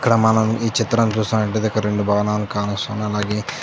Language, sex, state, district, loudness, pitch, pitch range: Telugu, male, Andhra Pradesh, Chittoor, -19 LUFS, 110 Hz, 105-110 Hz